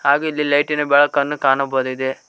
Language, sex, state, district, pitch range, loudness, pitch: Kannada, male, Karnataka, Koppal, 135-150 Hz, -17 LUFS, 140 Hz